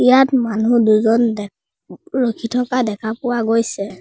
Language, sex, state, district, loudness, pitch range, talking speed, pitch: Assamese, female, Assam, Sonitpur, -17 LUFS, 220-250 Hz, 135 wpm, 230 Hz